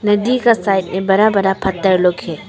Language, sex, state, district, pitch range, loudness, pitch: Hindi, female, Arunachal Pradesh, Papum Pare, 190-210 Hz, -15 LUFS, 195 Hz